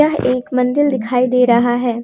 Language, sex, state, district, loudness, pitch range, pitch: Hindi, female, Jharkhand, Deoghar, -15 LUFS, 240-255 Hz, 250 Hz